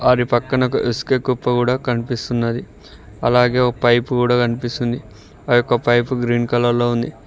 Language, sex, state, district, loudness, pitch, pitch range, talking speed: Telugu, male, Telangana, Mahabubabad, -18 LUFS, 120 Hz, 120-125 Hz, 155 wpm